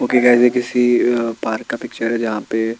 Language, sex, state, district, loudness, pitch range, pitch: Hindi, male, Chandigarh, Chandigarh, -17 LUFS, 115-125 Hz, 120 Hz